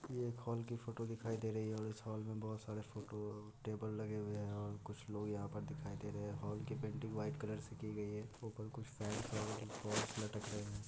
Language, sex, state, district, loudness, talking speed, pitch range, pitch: Hindi, male, Bihar, Muzaffarpur, -45 LUFS, 205 wpm, 105-115 Hz, 110 Hz